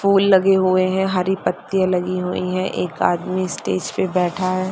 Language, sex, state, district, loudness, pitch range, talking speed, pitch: Hindi, female, Chhattisgarh, Bastar, -19 LUFS, 180-190 Hz, 190 wpm, 185 Hz